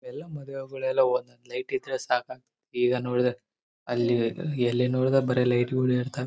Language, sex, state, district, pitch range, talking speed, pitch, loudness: Kannada, male, Karnataka, Bellary, 125-130 Hz, 135 wpm, 125 Hz, -27 LUFS